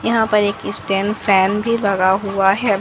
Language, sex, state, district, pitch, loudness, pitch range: Hindi, female, Bihar, Katihar, 200 Hz, -17 LUFS, 195-210 Hz